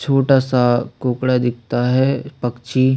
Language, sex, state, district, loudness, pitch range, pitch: Hindi, male, Chhattisgarh, Sukma, -18 LUFS, 120-135 Hz, 130 Hz